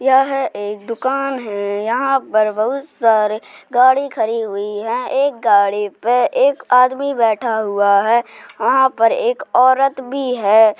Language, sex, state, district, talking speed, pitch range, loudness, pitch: Hindi, male, Uttar Pradesh, Jalaun, 145 wpm, 215-270 Hz, -16 LUFS, 235 Hz